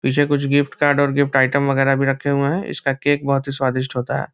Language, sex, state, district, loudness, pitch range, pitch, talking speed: Hindi, male, Bihar, Muzaffarpur, -18 LUFS, 135-145 Hz, 140 Hz, 260 wpm